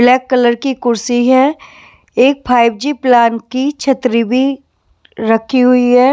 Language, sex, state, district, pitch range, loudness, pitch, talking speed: Hindi, female, Bihar, West Champaran, 240-265 Hz, -12 LUFS, 250 Hz, 135 wpm